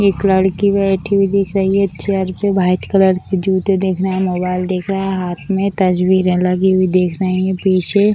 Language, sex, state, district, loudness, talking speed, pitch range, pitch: Hindi, female, Bihar, Sitamarhi, -15 LUFS, 215 wpm, 185-195 Hz, 190 Hz